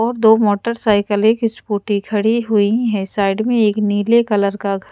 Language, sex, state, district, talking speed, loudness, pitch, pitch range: Hindi, female, Odisha, Sambalpur, 170 wpm, -16 LUFS, 210 Hz, 205-225 Hz